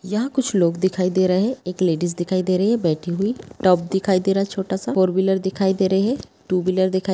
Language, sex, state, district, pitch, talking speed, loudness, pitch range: Hindi, female, Chhattisgarh, Kabirdham, 190 Hz, 270 wpm, -20 LUFS, 185-195 Hz